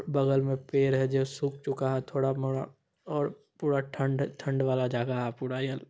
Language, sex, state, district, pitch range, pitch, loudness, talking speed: Hindi, male, Bihar, Supaul, 130-140 Hz, 135 Hz, -30 LUFS, 195 wpm